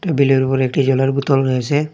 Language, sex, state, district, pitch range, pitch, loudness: Bengali, male, Assam, Hailakandi, 135-140 Hz, 135 Hz, -16 LUFS